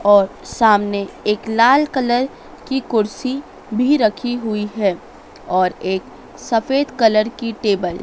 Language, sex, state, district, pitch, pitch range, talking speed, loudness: Hindi, female, Madhya Pradesh, Dhar, 220 Hz, 205-245 Hz, 135 wpm, -18 LUFS